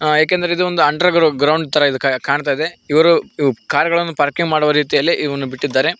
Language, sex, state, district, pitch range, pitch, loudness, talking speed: Kannada, male, Karnataka, Koppal, 145-170 Hz, 150 Hz, -16 LUFS, 170 wpm